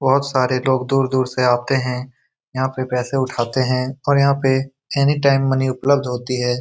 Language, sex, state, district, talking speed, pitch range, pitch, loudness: Hindi, male, Bihar, Lakhisarai, 200 wpm, 125-135 Hz, 130 Hz, -19 LUFS